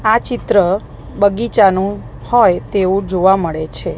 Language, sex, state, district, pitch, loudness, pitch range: Gujarati, female, Gujarat, Gandhinagar, 195 Hz, -14 LUFS, 185-215 Hz